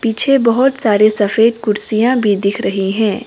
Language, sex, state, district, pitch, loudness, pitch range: Hindi, female, Arunachal Pradesh, Lower Dibang Valley, 220 Hz, -14 LUFS, 205-240 Hz